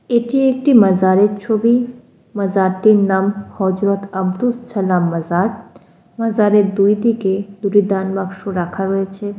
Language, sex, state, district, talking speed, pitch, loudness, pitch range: Bengali, female, West Bengal, Jalpaiguri, 115 wpm, 200 Hz, -16 LUFS, 190-220 Hz